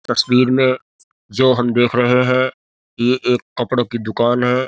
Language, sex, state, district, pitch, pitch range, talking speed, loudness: Hindi, male, Uttar Pradesh, Jyotiba Phule Nagar, 125 Hz, 120-130 Hz, 165 wpm, -16 LUFS